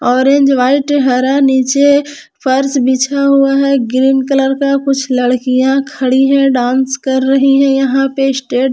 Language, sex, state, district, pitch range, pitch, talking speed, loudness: Hindi, female, Jharkhand, Palamu, 260-275 Hz, 270 Hz, 150 wpm, -11 LUFS